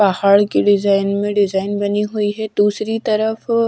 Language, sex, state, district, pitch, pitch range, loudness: Hindi, female, Bihar, Katihar, 205 Hz, 200-215 Hz, -17 LUFS